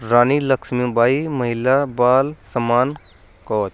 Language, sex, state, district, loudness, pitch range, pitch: Hindi, male, Uttar Pradesh, Saharanpur, -18 LUFS, 115-135 Hz, 125 Hz